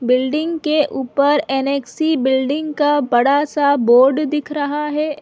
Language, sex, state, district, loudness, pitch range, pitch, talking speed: Hindi, female, Uttarakhand, Tehri Garhwal, -17 LUFS, 270-300 Hz, 290 Hz, 140 wpm